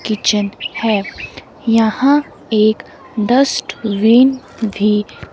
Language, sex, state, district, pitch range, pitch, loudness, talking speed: Hindi, female, Himachal Pradesh, Shimla, 210-245 Hz, 220 Hz, -15 LUFS, 65 wpm